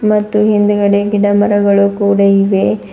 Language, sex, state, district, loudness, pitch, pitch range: Kannada, female, Karnataka, Bidar, -11 LUFS, 205 Hz, 200-205 Hz